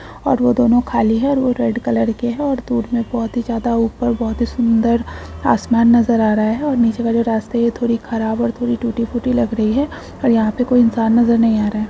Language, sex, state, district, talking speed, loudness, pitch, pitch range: Hindi, female, Maharashtra, Solapur, 250 wpm, -17 LUFS, 235 Hz, 225-240 Hz